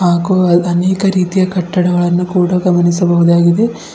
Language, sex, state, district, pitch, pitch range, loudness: Kannada, female, Karnataka, Bidar, 180 Hz, 175-185 Hz, -12 LUFS